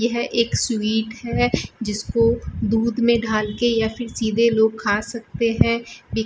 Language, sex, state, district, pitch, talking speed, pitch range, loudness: Hindi, female, Rajasthan, Bikaner, 230 Hz, 175 wpm, 220-235 Hz, -21 LUFS